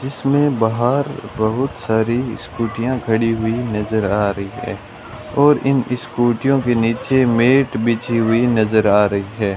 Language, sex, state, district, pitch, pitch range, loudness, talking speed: Hindi, male, Rajasthan, Bikaner, 115 Hz, 110-130 Hz, -17 LUFS, 145 wpm